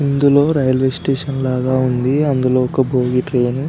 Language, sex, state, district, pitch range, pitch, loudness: Telugu, male, Telangana, Karimnagar, 130-140 Hz, 130 Hz, -16 LUFS